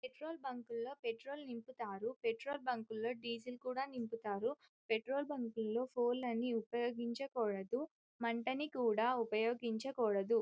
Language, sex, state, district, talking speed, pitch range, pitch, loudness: Telugu, female, Telangana, Karimnagar, 110 wpm, 230-260 Hz, 240 Hz, -40 LUFS